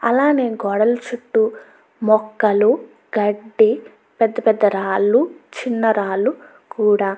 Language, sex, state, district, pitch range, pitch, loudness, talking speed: Telugu, female, Andhra Pradesh, Chittoor, 210-240 Hz, 220 Hz, -18 LUFS, 100 wpm